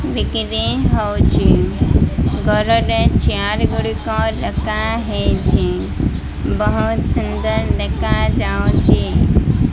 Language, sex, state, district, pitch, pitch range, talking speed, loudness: Odia, female, Odisha, Malkangiri, 75 Hz, 70-95 Hz, 55 wpm, -17 LUFS